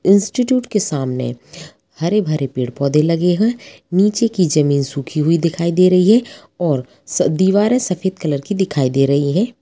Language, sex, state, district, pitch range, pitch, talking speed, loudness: Hindi, female, Bihar, Gopalganj, 145-205 Hz, 175 Hz, 160 wpm, -16 LUFS